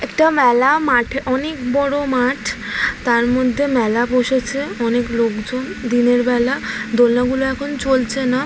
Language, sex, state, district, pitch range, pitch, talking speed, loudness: Bengali, female, West Bengal, Jalpaiguri, 240-270 Hz, 250 Hz, 135 wpm, -17 LUFS